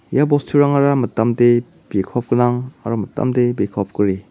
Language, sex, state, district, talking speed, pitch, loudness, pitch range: Garo, male, Meghalaya, West Garo Hills, 125 wpm, 120 Hz, -18 LUFS, 115-140 Hz